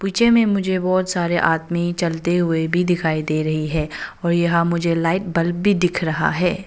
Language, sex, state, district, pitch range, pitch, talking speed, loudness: Hindi, female, Arunachal Pradesh, Papum Pare, 165-180 Hz, 170 Hz, 190 wpm, -19 LUFS